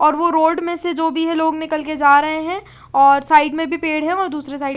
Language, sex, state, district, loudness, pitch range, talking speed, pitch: Hindi, female, Chandigarh, Chandigarh, -17 LUFS, 300-330 Hz, 300 wpm, 320 Hz